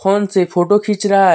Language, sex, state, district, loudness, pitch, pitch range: Hindi, male, Jharkhand, Deoghar, -15 LUFS, 195 Hz, 190-205 Hz